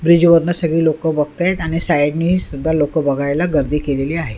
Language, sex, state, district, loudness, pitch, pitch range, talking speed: Marathi, female, Maharashtra, Mumbai Suburban, -16 LUFS, 160 Hz, 145-170 Hz, 165 wpm